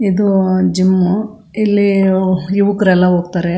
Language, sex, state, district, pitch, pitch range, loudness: Kannada, female, Karnataka, Chamarajanagar, 190 Hz, 185-200 Hz, -13 LUFS